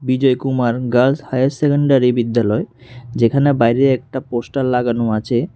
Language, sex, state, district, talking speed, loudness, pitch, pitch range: Bengali, male, Tripura, West Tripura, 130 wpm, -16 LUFS, 125 Hz, 120-135 Hz